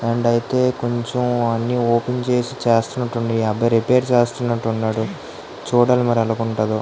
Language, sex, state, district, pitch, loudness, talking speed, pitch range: Telugu, female, Andhra Pradesh, Guntur, 120 Hz, -19 LUFS, 130 wpm, 115-125 Hz